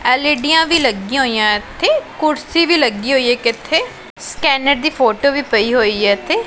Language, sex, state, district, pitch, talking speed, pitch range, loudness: Punjabi, female, Punjab, Pathankot, 275 Hz, 175 wpm, 230-305 Hz, -14 LUFS